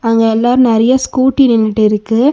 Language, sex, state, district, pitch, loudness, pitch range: Tamil, female, Tamil Nadu, Nilgiris, 230 Hz, -11 LUFS, 225-255 Hz